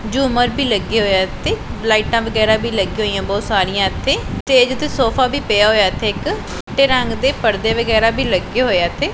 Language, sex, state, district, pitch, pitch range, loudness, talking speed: Punjabi, female, Punjab, Pathankot, 225 Hz, 210-250 Hz, -16 LUFS, 205 wpm